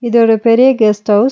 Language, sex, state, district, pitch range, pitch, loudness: Tamil, female, Tamil Nadu, Nilgiris, 215-240 Hz, 230 Hz, -11 LUFS